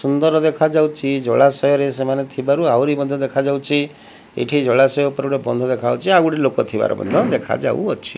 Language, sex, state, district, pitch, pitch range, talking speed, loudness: Odia, male, Odisha, Malkangiri, 140 Hz, 135-145 Hz, 145 wpm, -17 LUFS